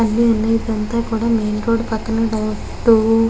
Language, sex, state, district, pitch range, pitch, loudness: Telugu, female, Andhra Pradesh, Guntur, 220-230 Hz, 225 Hz, -18 LUFS